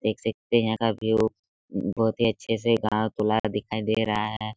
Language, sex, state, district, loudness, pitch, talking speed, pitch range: Hindi, male, Bihar, Araria, -25 LUFS, 110 Hz, 195 wpm, 105-110 Hz